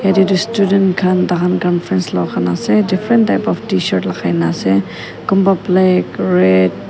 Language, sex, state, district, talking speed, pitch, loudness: Nagamese, female, Nagaland, Kohima, 150 wpm, 175 Hz, -14 LUFS